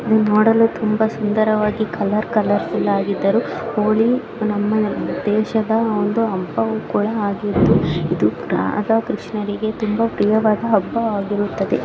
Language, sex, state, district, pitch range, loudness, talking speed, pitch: Kannada, female, Karnataka, Mysore, 205-220 Hz, -18 LUFS, 80 wpm, 215 Hz